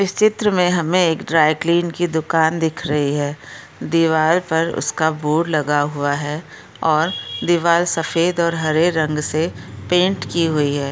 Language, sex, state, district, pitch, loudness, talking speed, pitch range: Hindi, female, Bihar, Darbhanga, 160 Hz, -18 LUFS, 170 wpm, 155-170 Hz